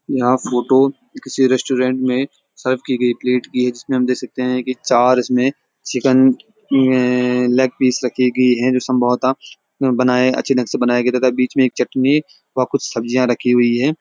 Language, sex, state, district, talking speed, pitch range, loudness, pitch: Hindi, male, Uttarakhand, Uttarkashi, 185 wpm, 125-130 Hz, -16 LUFS, 125 Hz